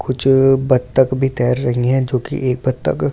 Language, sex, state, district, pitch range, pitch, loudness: Hindi, male, Delhi, New Delhi, 125-135 Hz, 130 Hz, -16 LUFS